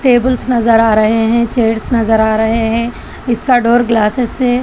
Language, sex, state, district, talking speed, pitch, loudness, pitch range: Hindi, female, Telangana, Hyderabad, 180 wpm, 230 Hz, -12 LUFS, 225-245 Hz